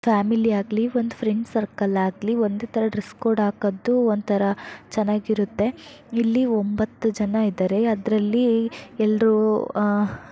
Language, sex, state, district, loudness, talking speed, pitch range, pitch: Kannada, female, Karnataka, Shimoga, -22 LUFS, 115 wpm, 205-230 Hz, 215 Hz